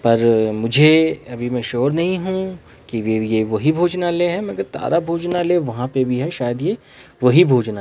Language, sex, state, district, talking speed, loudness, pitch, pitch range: Hindi, male, Himachal Pradesh, Shimla, 185 wpm, -18 LUFS, 135 Hz, 120-175 Hz